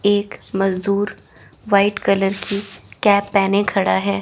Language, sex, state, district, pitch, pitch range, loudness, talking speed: Hindi, female, Chandigarh, Chandigarh, 200 Hz, 195-205 Hz, -18 LUFS, 130 wpm